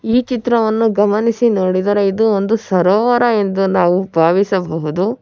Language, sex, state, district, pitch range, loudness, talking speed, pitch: Kannada, female, Karnataka, Bangalore, 185-225 Hz, -15 LUFS, 115 wpm, 205 Hz